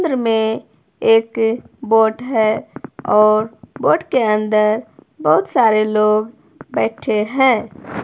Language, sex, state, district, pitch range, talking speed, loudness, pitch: Hindi, female, Himachal Pradesh, Shimla, 215-230 Hz, 110 wpm, -16 LUFS, 220 Hz